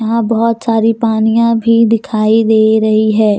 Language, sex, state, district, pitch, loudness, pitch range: Hindi, female, Jharkhand, Deoghar, 225 Hz, -11 LUFS, 220-230 Hz